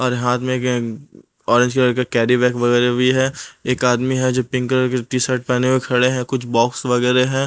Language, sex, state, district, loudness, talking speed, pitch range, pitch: Hindi, male, Punjab, Pathankot, -18 LUFS, 225 wpm, 125-130 Hz, 125 Hz